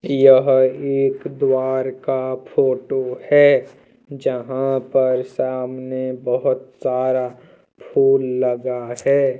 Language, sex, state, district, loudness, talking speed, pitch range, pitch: Hindi, male, Jharkhand, Deoghar, -19 LUFS, 90 wpm, 130-135 Hz, 130 Hz